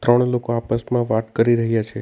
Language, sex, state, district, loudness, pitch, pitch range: Gujarati, male, Gujarat, Navsari, -20 LUFS, 115 Hz, 115-120 Hz